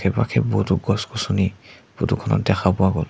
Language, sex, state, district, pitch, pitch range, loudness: Assamese, male, Assam, Sonitpur, 100 Hz, 95-115 Hz, -21 LUFS